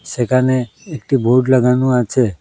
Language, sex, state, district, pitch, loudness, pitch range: Bengali, male, Assam, Hailakandi, 125 Hz, -15 LUFS, 120-130 Hz